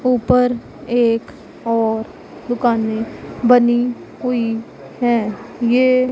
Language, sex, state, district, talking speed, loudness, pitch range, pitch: Hindi, female, Punjab, Pathankot, 80 wpm, -18 LUFS, 230-250 Hz, 240 Hz